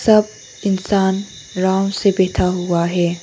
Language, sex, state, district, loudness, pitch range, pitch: Hindi, female, Arunachal Pradesh, Longding, -18 LUFS, 180-200 Hz, 190 Hz